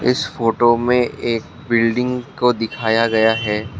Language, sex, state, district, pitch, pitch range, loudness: Hindi, male, Assam, Kamrup Metropolitan, 120 Hz, 115-125 Hz, -18 LUFS